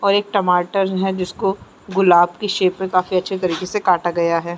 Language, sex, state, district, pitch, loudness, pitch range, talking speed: Chhattisgarhi, female, Chhattisgarh, Jashpur, 185 Hz, -18 LUFS, 175-195 Hz, 220 wpm